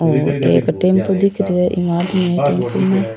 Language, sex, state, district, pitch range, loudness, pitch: Rajasthani, female, Rajasthan, Churu, 170-190 Hz, -16 LUFS, 180 Hz